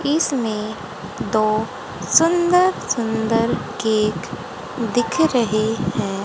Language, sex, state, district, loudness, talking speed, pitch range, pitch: Hindi, female, Haryana, Rohtak, -20 LUFS, 75 wpm, 215-275 Hz, 225 Hz